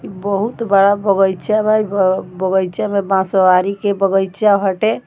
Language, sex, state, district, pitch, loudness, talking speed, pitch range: Bhojpuri, female, Bihar, Muzaffarpur, 195 Hz, -15 LUFS, 155 wpm, 190-205 Hz